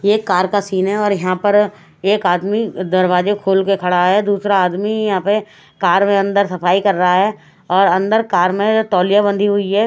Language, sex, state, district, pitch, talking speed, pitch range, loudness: Hindi, female, Chhattisgarh, Raipur, 195 Hz, 200 wpm, 185-205 Hz, -15 LUFS